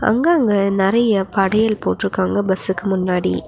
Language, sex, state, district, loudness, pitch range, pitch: Tamil, female, Tamil Nadu, Nilgiris, -17 LUFS, 190-220 Hz, 195 Hz